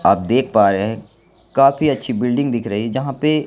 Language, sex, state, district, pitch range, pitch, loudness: Hindi, male, Madhya Pradesh, Katni, 110-140 Hz, 130 Hz, -17 LUFS